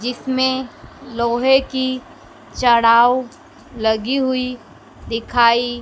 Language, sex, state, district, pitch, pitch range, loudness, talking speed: Hindi, female, Madhya Pradesh, Dhar, 250 Hz, 235-260 Hz, -17 LUFS, 70 wpm